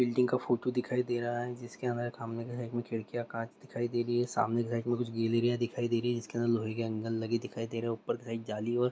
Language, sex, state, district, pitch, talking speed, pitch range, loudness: Hindi, male, Bihar, Muzaffarpur, 120 Hz, 295 wpm, 115-120 Hz, -33 LUFS